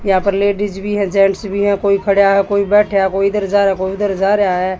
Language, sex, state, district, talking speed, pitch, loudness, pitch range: Hindi, female, Haryana, Jhajjar, 290 wpm, 200 Hz, -15 LUFS, 195-200 Hz